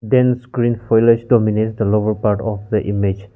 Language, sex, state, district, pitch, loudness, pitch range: English, male, Nagaland, Kohima, 110 Hz, -17 LUFS, 105-120 Hz